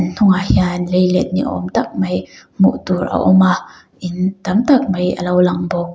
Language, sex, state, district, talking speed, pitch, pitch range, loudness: Mizo, female, Mizoram, Aizawl, 200 wpm, 180 Hz, 175-185 Hz, -16 LUFS